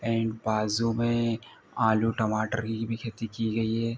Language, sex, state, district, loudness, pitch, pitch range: Hindi, male, Uttar Pradesh, Ghazipur, -28 LUFS, 115 Hz, 110-115 Hz